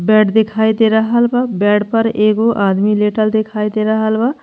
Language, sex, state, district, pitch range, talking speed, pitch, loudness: Bhojpuri, female, Uttar Pradesh, Ghazipur, 210-225 Hz, 190 wpm, 220 Hz, -14 LUFS